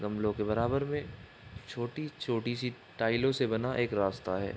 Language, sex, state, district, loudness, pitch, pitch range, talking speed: Hindi, male, Uttar Pradesh, Gorakhpur, -32 LUFS, 115 Hz, 105-125 Hz, 160 wpm